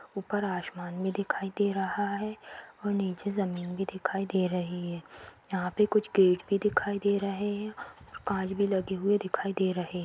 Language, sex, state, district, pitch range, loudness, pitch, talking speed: Hindi, female, Uttar Pradesh, Etah, 185-200 Hz, -30 LUFS, 195 Hz, 190 wpm